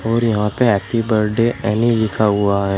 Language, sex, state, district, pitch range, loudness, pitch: Hindi, male, Uttar Pradesh, Shamli, 105-115 Hz, -17 LUFS, 110 Hz